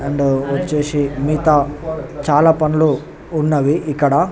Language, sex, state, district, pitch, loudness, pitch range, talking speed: Telugu, male, Telangana, Nalgonda, 150 Hz, -17 LUFS, 140-155 Hz, 95 wpm